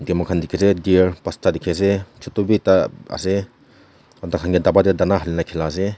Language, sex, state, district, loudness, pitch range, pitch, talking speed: Nagamese, male, Nagaland, Kohima, -19 LUFS, 90-100 Hz, 95 Hz, 200 wpm